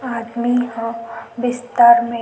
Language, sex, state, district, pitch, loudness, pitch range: Chhattisgarhi, female, Chhattisgarh, Sukma, 235 Hz, -17 LUFS, 230-245 Hz